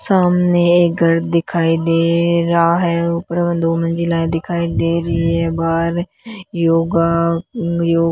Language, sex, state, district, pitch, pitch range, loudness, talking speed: Hindi, female, Rajasthan, Bikaner, 170 Hz, 165-170 Hz, -16 LUFS, 140 wpm